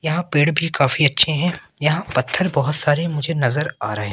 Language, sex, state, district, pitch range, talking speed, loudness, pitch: Hindi, male, Madhya Pradesh, Katni, 140-165 Hz, 220 wpm, -19 LUFS, 150 Hz